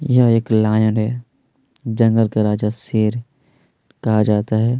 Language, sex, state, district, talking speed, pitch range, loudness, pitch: Hindi, male, Chhattisgarh, Kabirdham, 135 wpm, 110-125 Hz, -17 LUFS, 115 Hz